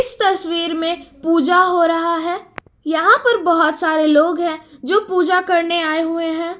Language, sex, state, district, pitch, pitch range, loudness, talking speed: Hindi, female, Jharkhand, Palamu, 335 Hz, 325-365 Hz, -16 LUFS, 165 wpm